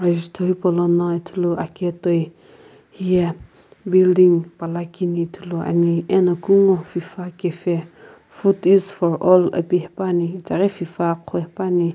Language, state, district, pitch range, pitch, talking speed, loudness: Sumi, Nagaland, Kohima, 170-185 Hz, 175 Hz, 125 wpm, -19 LUFS